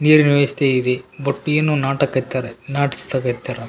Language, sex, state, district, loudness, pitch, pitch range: Kannada, male, Karnataka, Raichur, -19 LUFS, 135 Hz, 130-140 Hz